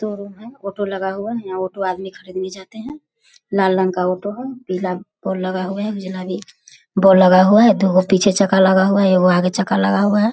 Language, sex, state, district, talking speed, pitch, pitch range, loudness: Hindi, female, Bihar, Sitamarhi, 225 wpm, 190 Hz, 185-205 Hz, -17 LUFS